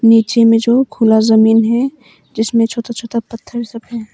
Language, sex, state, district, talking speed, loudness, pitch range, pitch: Hindi, female, Arunachal Pradesh, Papum Pare, 175 wpm, -13 LUFS, 225-235 Hz, 230 Hz